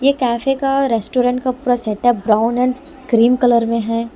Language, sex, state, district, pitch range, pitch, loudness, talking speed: Hindi, female, Delhi, New Delhi, 230-255 Hz, 245 Hz, -16 LUFS, 185 wpm